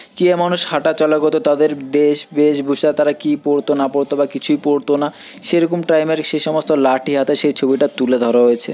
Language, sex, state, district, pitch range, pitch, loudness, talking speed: Bengali, male, West Bengal, Purulia, 140-155 Hz, 150 Hz, -16 LUFS, 200 wpm